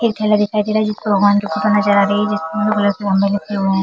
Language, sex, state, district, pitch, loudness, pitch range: Hindi, female, Chhattisgarh, Bilaspur, 210 Hz, -16 LUFS, 200-215 Hz